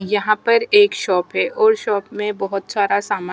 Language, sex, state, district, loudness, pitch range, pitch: Hindi, female, Maharashtra, Mumbai Suburban, -18 LUFS, 195-230 Hz, 205 Hz